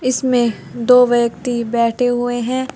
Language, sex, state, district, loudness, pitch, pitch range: Hindi, female, Uttar Pradesh, Saharanpur, -16 LUFS, 245 Hz, 235-250 Hz